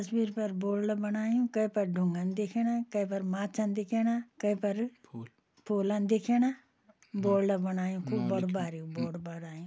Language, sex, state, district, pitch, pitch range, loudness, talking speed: Garhwali, female, Uttarakhand, Uttarkashi, 205 Hz, 190-220 Hz, -32 LUFS, 145 wpm